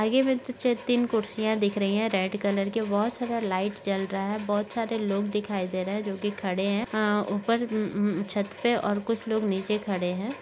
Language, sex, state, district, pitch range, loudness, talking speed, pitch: Hindi, female, Maharashtra, Solapur, 200-225 Hz, -27 LUFS, 205 wpm, 210 Hz